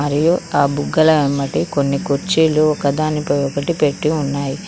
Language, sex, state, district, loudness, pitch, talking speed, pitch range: Telugu, female, Telangana, Mahabubabad, -17 LUFS, 145 Hz, 130 wpm, 140-155 Hz